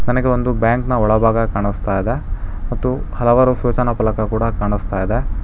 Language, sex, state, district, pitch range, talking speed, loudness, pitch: Kannada, male, Karnataka, Bangalore, 105-125 Hz, 145 wpm, -18 LUFS, 115 Hz